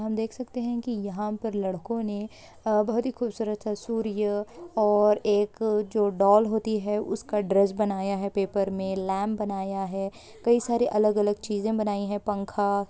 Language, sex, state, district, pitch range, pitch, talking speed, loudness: Hindi, female, West Bengal, Purulia, 200-220 Hz, 210 Hz, 175 wpm, -27 LUFS